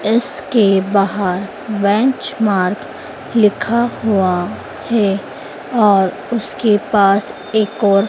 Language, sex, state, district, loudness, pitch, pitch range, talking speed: Hindi, female, Madhya Pradesh, Dhar, -16 LUFS, 205 Hz, 195-220 Hz, 90 wpm